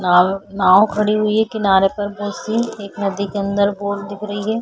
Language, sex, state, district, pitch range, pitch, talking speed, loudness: Hindi, female, Bihar, Vaishali, 200-210 Hz, 205 Hz, 220 wpm, -18 LUFS